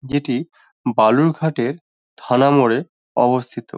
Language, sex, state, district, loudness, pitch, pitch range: Bengali, male, West Bengal, Dakshin Dinajpur, -18 LUFS, 135 Hz, 120-145 Hz